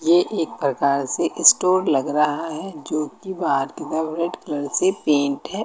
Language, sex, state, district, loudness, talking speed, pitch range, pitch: Hindi, female, Uttar Pradesh, Lucknow, -21 LUFS, 180 wpm, 140-175 Hz, 155 Hz